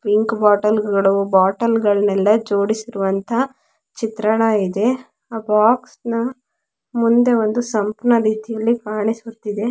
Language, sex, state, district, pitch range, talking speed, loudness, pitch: Kannada, female, Karnataka, Mysore, 210-235 Hz, 75 wpm, -18 LUFS, 220 Hz